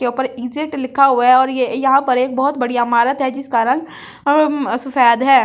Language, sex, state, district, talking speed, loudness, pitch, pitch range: Hindi, female, Delhi, New Delhi, 230 wpm, -15 LUFS, 260 Hz, 245-275 Hz